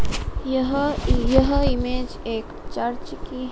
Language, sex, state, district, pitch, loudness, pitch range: Hindi, female, Madhya Pradesh, Dhar, 255 Hz, -23 LUFS, 245-275 Hz